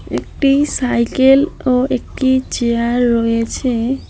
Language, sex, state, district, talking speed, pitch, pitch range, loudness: Bengali, female, West Bengal, Alipurduar, 90 wpm, 255 Hz, 235-265 Hz, -15 LUFS